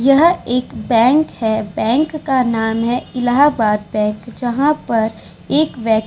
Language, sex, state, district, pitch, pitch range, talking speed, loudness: Hindi, female, Bihar, Vaishali, 240 Hz, 220-275 Hz, 150 wpm, -16 LUFS